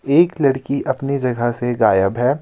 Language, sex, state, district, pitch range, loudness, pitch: Hindi, male, Himachal Pradesh, Shimla, 120-140 Hz, -18 LUFS, 130 Hz